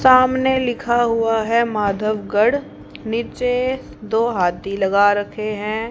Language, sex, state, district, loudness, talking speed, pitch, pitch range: Hindi, female, Haryana, Charkhi Dadri, -19 LUFS, 110 wpm, 225 Hz, 210-245 Hz